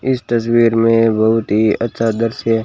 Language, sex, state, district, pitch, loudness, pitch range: Hindi, male, Rajasthan, Bikaner, 115 Hz, -15 LUFS, 110-115 Hz